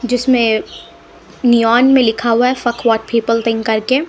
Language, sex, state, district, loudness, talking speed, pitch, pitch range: Hindi, female, Punjab, Pathankot, -14 LUFS, 145 wpm, 235 Hz, 225-250 Hz